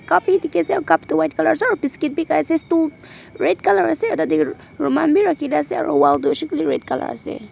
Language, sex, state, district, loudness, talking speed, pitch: Nagamese, female, Nagaland, Dimapur, -19 LUFS, 270 wpm, 315 Hz